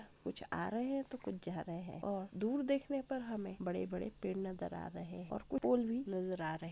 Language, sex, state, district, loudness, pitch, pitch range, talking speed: Hindi, female, West Bengal, Purulia, -40 LUFS, 195 Hz, 180-250 Hz, 250 wpm